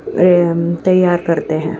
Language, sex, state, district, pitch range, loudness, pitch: Hindi, female, Chhattisgarh, Bastar, 165-180 Hz, -14 LUFS, 170 Hz